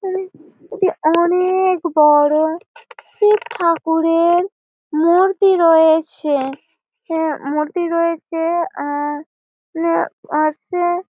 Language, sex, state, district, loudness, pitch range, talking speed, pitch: Bengali, female, West Bengal, Malda, -16 LUFS, 310-365 Hz, 80 wpm, 335 Hz